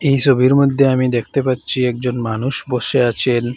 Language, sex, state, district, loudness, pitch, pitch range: Bengali, male, Assam, Hailakandi, -16 LUFS, 130 Hz, 120-135 Hz